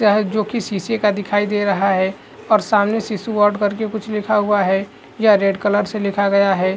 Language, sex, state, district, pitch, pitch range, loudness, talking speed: Hindi, male, Uttarakhand, Uttarkashi, 205 Hz, 200-215 Hz, -18 LUFS, 205 wpm